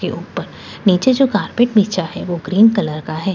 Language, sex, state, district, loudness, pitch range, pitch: Hindi, female, Bihar, Katihar, -16 LUFS, 175-220 Hz, 195 Hz